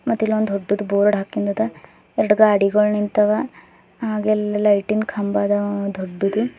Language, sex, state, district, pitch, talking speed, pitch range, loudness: Kannada, female, Karnataka, Bidar, 210 Hz, 120 wpm, 200-215 Hz, -19 LUFS